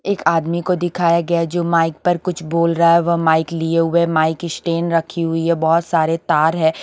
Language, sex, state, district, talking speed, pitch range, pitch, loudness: Hindi, female, Haryana, Rohtak, 230 wpm, 165-170 Hz, 170 Hz, -17 LUFS